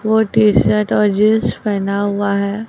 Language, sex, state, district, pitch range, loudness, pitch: Hindi, female, Bihar, Katihar, 200-215 Hz, -15 LUFS, 210 Hz